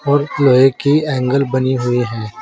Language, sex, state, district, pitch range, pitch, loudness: Hindi, male, Uttar Pradesh, Saharanpur, 125-145 Hz, 135 Hz, -15 LUFS